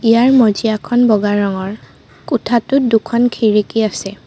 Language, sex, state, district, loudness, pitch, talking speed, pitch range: Assamese, female, Assam, Sonitpur, -14 LUFS, 220 Hz, 110 wpm, 205-240 Hz